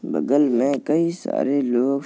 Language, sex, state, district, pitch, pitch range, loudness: Hindi, male, Uttar Pradesh, Jalaun, 140 Hz, 135-165 Hz, -21 LUFS